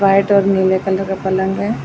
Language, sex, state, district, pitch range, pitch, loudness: Hindi, female, Chhattisgarh, Raigarh, 190-195 Hz, 195 Hz, -16 LUFS